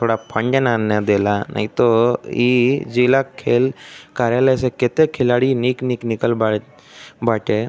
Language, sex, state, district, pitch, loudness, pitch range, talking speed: Bhojpuri, male, Uttar Pradesh, Deoria, 120 Hz, -18 LUFS, 115-130 Hz, 150 wpm